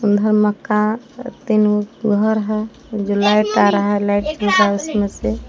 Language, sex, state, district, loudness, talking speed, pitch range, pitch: Hindi, female, Jharkhand, Palamu, -17 LUFS, 140 wpm, 205-215 Hz, 210 Hz